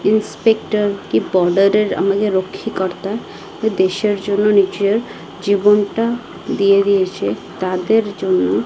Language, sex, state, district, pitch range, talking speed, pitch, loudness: Bengali, female, Odisha, Malkangiri, 190-210 Hz, 95 wpm, 200 Hz, -17 LUFS